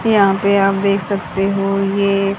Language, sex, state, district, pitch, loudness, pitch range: Hindi, female, Haryana, Jhajjar, 195 Hz, -16 LUFS, 195-200 Hz